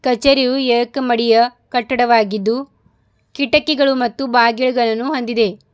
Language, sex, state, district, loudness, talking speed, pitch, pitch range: Kannada, female, Karnataka, Bidar, -16 LUFS, 85 wpm, 245 Hz, 235-270 Hz